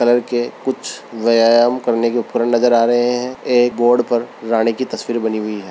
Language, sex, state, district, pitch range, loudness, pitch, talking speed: Hindi, male, Rajasthan, Churu, 115-120 Hz, -16 LUFS, 120 Hz, 210 wpm